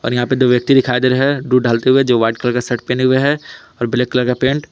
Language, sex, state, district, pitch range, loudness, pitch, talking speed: Hindi, male, Jharkhand, Palamu, 120-130 Hz, -15 LUFS, 125 Hz, 330 wpm